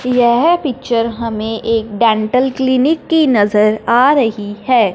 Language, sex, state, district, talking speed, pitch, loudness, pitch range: Hindi, male, Punjab, Fazilka, 135 wpm, 235 Hz, -14 LUFS, 215-260 Hz